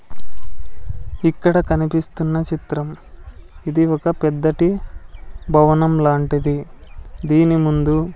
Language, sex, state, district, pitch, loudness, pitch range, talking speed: Telugu, male, Andhra Pradesh, Sri Satya Sai, 155 Hz, -18 LUFS, 145-160 Hz, 75 wpm